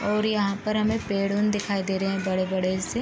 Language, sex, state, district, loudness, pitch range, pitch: Hindi, female, Bihar, Gopalganj, -25 LUFS, 190-210 Hz, 200 Hz